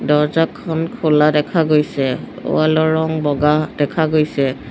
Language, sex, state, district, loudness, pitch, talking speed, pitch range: Assamese, female, Assam, Sonitpur, -17 LUFS, 155 Hz, 130 wpm, 150-160 Hz